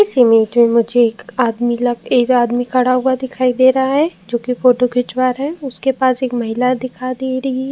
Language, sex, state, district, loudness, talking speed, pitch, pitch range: Hindi, female, Uttar Pradesh, Jyotiba Phule Nagar, -15 LUFS, 210 wpm, 255 Hz, 245-260 Hz